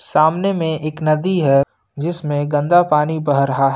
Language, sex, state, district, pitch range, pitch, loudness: Hindi, male, Jharkhand, Ranchi, 145-170 Hz, 155 Hz, -17 LUFS